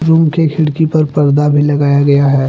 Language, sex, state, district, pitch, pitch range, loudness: Hindi, male, Jharkhand, Deoghar, 150 Hz, 140-160 Hz, -11 LUFS